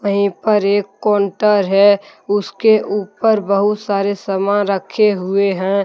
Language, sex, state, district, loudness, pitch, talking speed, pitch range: Hindi, male, Jharkhand, Deoghar, -16 LUFS, 200 Hz, 135 wpm, 200-210 Hz